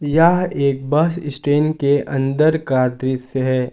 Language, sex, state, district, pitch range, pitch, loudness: Hindi, male, Jharkhand, Garhwa, 130-155 Hz, 140 Hz, -18 LUFS